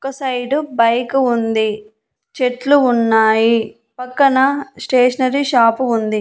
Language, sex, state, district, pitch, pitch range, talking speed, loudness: Telugu, female, Andhra Pradesh, Annamaya, 250 Hz, 230-270 Hz, 95 wpm, -15 LUFS